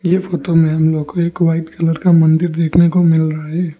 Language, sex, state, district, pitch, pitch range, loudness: Hindi, male, Arunachal Pradesh, Lower Dibang Valley, 165 Hz, 160-175 Hz, -14 LUFS